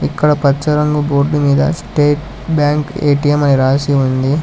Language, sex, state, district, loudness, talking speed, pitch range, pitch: Telugu, male, Telangana, Hyderabad, -14 LUFS, 150 wpm, 140-150 Hz, 145 Hz